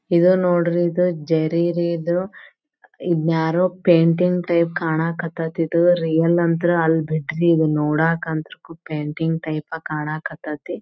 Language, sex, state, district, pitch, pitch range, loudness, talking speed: Kannada, female, Karnataka, Belgaum, 165 Hz, 160-175 Hz, -20 LUFS, 120 wpm